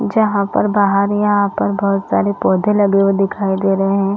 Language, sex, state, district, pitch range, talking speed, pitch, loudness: Hindi, female, Chhattisgarh, Rajnandgaon, 195-205 Hz, 200 wpm, 200 Hz, -15 LUFS